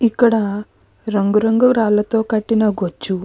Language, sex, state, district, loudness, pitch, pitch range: Telugu, female, Andhra Pradesh, Krishna, -16 LUFS, 215 Hz, 205-225 Hz